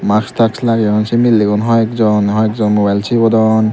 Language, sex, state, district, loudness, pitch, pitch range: Chakma, male, Tripura, Dhalai, -13 LUFS, 110 Hz, 105-115 Hz